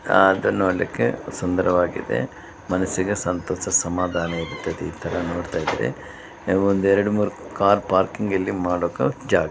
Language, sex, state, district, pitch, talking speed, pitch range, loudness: Kannada, male, Karnataka, Bellary, 95 Hz, 115 wpm, 85-100 Hz, -22 LUFS